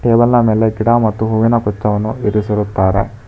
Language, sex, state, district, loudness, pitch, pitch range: Kannada, male, Karnataka, Bangalore, -14 LUFS, 110 Hz, 105-115 Hz